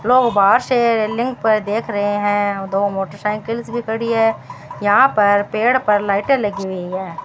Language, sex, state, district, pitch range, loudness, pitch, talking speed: Hindi, female, Rajasthan, Bikaner, 200-235 Hz, -17 LUFS, 210 Hz, 165 wpm